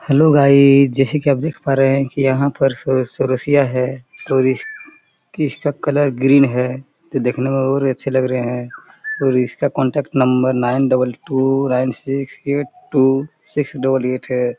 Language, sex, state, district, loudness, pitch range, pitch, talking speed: Hindi, male, Chhattisgarh, Korba, -17 LUFS, 130-145 Hz, 135 Hz, 180 wpm